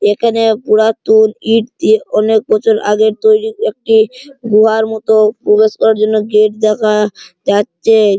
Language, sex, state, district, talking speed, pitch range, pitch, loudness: Bengali, male, West Bengal, Malda, 125 wpm, 215-250 Hz, 220 Hz, -12 LUFS